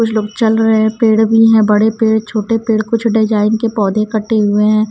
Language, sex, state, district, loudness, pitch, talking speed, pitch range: Hindi, female, Punjab, Kapurthala, -13 LUFS, 220 Hz, 230 wpm, 215-225 Hz